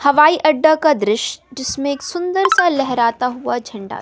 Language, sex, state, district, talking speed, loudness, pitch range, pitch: Hindi, female, Bihar, West Champaran, 165 wpm, -16 LUFS, 250-310 Hz, 280 Hz